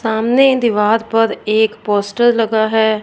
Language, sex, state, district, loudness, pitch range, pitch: Hindi, female, Punjab, Fazilka, -14 LUFS, 215-230 Hz, 220 Hz